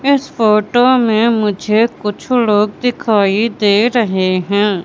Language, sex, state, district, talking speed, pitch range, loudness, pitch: Hindi, female, Madhya Pradesh, Katni, 125 wpm, 205-235 Hz, -13 LUFS, 215 Hz